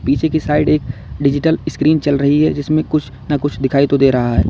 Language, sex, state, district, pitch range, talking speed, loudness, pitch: Hindi, male, Uttar Pradesh, Lalitpur, 135-155 Hz, 225 wpm, -15 LUFS, 145 Hz